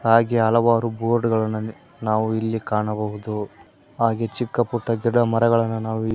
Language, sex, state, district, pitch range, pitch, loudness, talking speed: Kannada, male, Karnataka, Koppal, 110-115 Hz, 115 Hz, -22 LUFS, 115 wpm